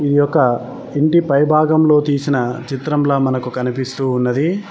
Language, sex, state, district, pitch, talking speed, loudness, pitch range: Telugu, male, Telangana, Mahabubabad, 145 Hz, 130 wpm, -16 LUFS, 130-155 Hz